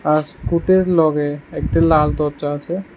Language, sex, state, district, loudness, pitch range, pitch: Bengali, male, Tripura, West Tripura, -17 LUFS, 150-170 Hz, 155 Hz